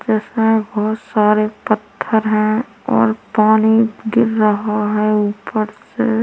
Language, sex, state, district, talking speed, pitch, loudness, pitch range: Hindi, female, Chhattisgarh, Korba, 105 wpm, 215 Hz, -16 LUFS, 210-220 Hz